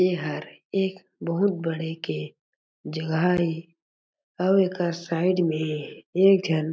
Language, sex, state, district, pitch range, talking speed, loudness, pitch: Chhattisgarhi, male, Chhattisgarh, Jashpur, 160-185 Hz, 115 wpm, -25 LUFS, 170 Hz